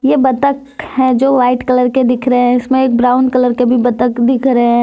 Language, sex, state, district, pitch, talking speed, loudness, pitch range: Hindi, female, Jharkhand, Deoghar, 250 Hz, 235 wpm, -12 LUFS, 245-260 Hz